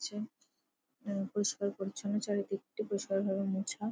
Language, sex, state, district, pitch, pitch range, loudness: Bengali, female, West Bengal, Jalpaiguri, 205 Hz, 195-215 Hz, -36 LUFS